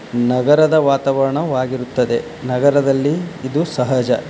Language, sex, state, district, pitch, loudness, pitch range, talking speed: Kannada, male, Karnataka, Dharwad, 135 Hz, -17 LUFS, 125-150 Hz, 180 wpm